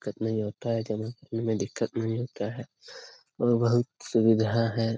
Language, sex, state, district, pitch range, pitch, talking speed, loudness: Hindi, male, Bihar, Jamui, 110-115 Hz, 115 Hz, 95 wpm, -28 LUFS